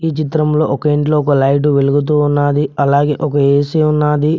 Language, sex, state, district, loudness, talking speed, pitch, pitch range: Telugu, male, Telangana, Mahabubabad, -14 LUFS, 165 wpm, 150 Hz, 145-150 Hz